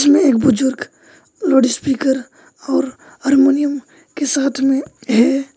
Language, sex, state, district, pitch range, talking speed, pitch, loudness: Hindi, male, West Bengal, Alipurduar, 265-285 Hz, 95 wpm, 275 Hz, -16 LUFS